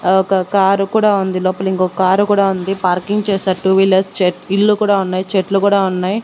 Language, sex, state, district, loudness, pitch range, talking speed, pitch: Telugu, female, Andhra Pradesh, Annamaya, -15 LUFS, 185-200 Hz, 200 wpm, 190 Hz